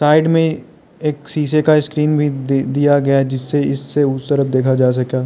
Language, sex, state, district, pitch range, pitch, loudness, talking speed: Hindi, male, Arunachal Pradesh, Lower Dibang Valley, 135-150 Hz, 145 Hz, -16 LUFS, 180 wpm